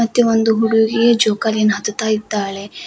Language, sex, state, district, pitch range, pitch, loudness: Kannada, female, Karnataka, Koppal, 210-225 Hz, 220 Hz, -16 LUFS